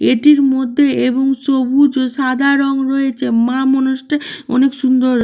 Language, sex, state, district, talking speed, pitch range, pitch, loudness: Bengali, female, West Bengal, Malda, 140 wpm, 255-275 Hz, 265 Hz, -14 LUFS